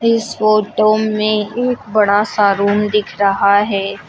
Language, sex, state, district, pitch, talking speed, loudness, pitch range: Hindi, female, Uttar Pradesh, Lucknow, 210 Hz, 145 wpm, -15 LUFS, 200-215 Hz